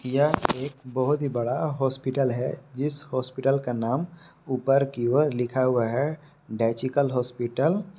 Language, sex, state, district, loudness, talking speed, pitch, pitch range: Hindi, male, Jharkhand, Palamu, -26 LUFS, 145 wpm, 135 Hz, 125-145 Hz